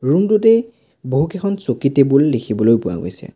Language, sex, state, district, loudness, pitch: Assamese, male, Assam, Sonitpur, -16 LUFS, 140 Hz